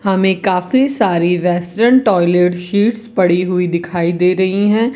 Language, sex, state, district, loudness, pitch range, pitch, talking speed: Hindi, female, Rajasthan, Bikaner, -14 LUFS, 180-215 Hz, 185 Hz, 145 wpm